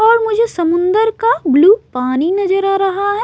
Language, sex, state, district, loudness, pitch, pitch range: Hindi, female, Maharashtra, Mumbai Suburban, -14 LUFS, 390 Hz, 345-445 Hz